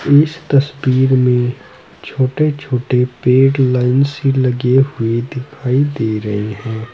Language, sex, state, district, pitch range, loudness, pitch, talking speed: Hindi, male, Uttar Pradesh, Saharanpur, 125-140 Hz, -15 LUFS, 130 Hz, 120 wpm